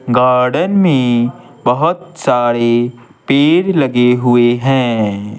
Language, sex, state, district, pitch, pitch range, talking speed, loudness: Hindi, male, Bihar, Patna, 125 Hz, 120-140 Hz, 90 wpm, -13 LUFS